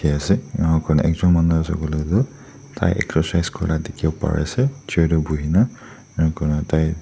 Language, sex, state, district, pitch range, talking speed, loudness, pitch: Nagamese, male, Nagaland, Dimapur, 80-95 Hz, 160 wpm, -20 LUFS, 80 Hz